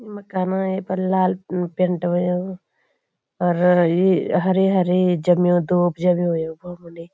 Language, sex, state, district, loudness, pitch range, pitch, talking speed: Garhwali, female, Uttarakhand, Uttarkashi, -20 LUFS, 175-185 Hz, 180 Hz, 120 wpm